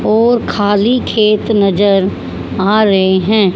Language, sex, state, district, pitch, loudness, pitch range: Hindi, female, Haryana, Charkhi Dadri, 205 Hz, -12 LUFS, 195-215 Hz